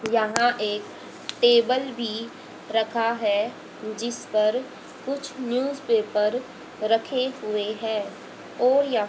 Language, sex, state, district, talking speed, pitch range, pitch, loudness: Hindi, female, Haryana, Jhajjar, 100 wpm, 215-255 Hz, 230 Hz, -25 LUFS